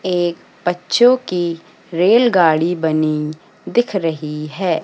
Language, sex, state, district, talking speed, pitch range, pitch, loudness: Hindi, female, Madhya Pradesh, Katni, 110 wpm, 160-185 Hz, 175 Hz, -17 LUFS